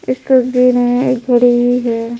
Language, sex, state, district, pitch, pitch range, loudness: Hindi, female, Bihar, Patna, 245 Hz, 245-255 Hz, -13 LUFS